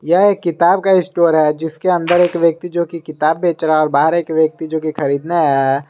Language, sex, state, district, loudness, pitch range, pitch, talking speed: Hindi, male, Jharkhand, Garhwa, -15 LUFS, 155-175 Hz, 165 Hz, 245 wpm